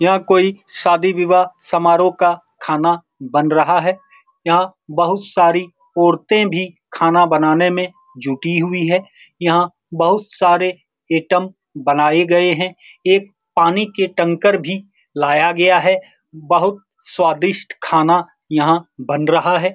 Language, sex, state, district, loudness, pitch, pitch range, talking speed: Hindi, male, Bihar, Saran, -16 LUFS, 175 Hz, 170-185 Hz, 135 wpm